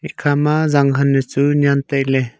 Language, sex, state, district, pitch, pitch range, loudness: Wancho, male, Arunachal Pradesh, Longding, 140 Hz, 135-145 Hz, -16 LUFS